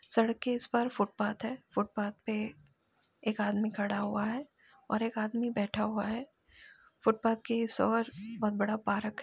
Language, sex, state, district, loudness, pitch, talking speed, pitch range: Hindi, female, Uttar Pradesh, Jalaun, -33 LUFS, 220 Hz, 175 wpm, 210-230 Hz